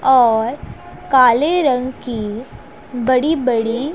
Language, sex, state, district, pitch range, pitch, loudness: Hindi, female, Punjab, Pathankot, 230-265 Hz, 250 Hz, -16 LUFS